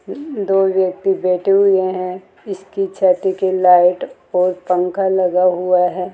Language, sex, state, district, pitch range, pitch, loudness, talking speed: Hindi, female, Rajasthan, Jaipur, 180-195 Hz, 185 Hz, -16 LUFS, 135 wpm